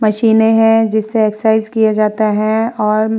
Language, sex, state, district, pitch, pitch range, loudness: Hindi, female, Uttar Pradesh, Muzaffarnagar, 220 Hz, 215-225 Hz, -13 LUFS